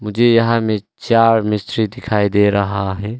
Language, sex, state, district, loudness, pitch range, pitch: Hindi, male, Arunachal Pradesh, Longding, -16 LUFS, 105-115 Hz, 110 Hz